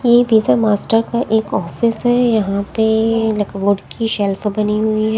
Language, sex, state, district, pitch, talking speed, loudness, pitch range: Hindi, female, Punjab, Kapurthala, 220 Hz, 175 wpm, -16 LUFS, 210-225 Hz